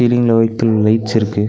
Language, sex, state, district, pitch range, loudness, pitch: Tamil, male, Tamil Nadu, Nilgiris, 110-115 Hz, -14 LUFS, 110 Hz